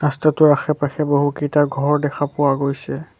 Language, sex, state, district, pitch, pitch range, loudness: Assamese, male, Assam, Sonitpur, 145 Hz, 140-150 Hz, -18 LUFS